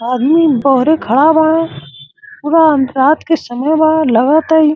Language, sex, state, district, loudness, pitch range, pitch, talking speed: Bhojpuri, male, Uttar Pradesh, Gorakhpur, -11 LUFS, 265-320 Hz, 305 Hz, 140 wpm